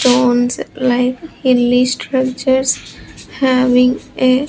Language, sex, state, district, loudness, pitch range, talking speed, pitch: English, female, Andhra Pradesh, Sri Satya Sai, -15 LUFS, 250-260 Hz, 95 wpm, 255 Hz